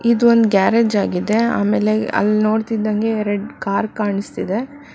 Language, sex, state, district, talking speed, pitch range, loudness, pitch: Kannada, female, Karnataka, Bangalore, 120 wpm, 205-230 Hz, -17 LUFS, 215 Hz